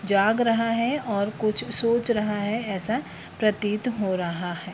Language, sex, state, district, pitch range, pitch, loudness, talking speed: Hindi, female, Bihar, Purnia, 200-230 Hz, 215 Hz, -24 LUFS, 165 wpm